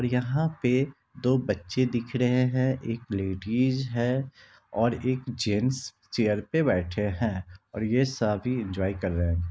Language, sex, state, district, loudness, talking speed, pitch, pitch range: Hindi, male, Bihar, Kishanganj, -27 LUFS, 150 wpm, 120 Hz, 105-130 Hz